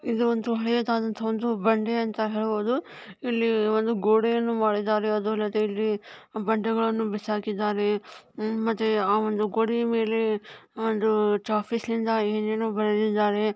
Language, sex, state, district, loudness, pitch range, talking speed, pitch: Kannada, female, Karnataka, Dharwad, -25 LUFS, 215-225 Hz, 120 wpm, 220 Hz